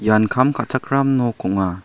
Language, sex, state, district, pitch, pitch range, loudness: Garo, male, Meghalaya, South Garo Hills, 120 Hz, 105-130 Hz, -19 LUFS